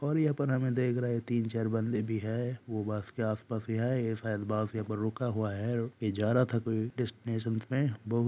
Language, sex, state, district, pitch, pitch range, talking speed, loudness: Hindi, male, Jharkhand, Jamtara, 115 Hz, 110-125 Hz, 215 wpm, -32 LUFS